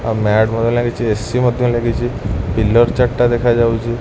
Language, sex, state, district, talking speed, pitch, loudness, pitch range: Odia, male, Odisha, Khordha, 165 wpm, 115 Hz, -15 LUFS, 110-120 Hz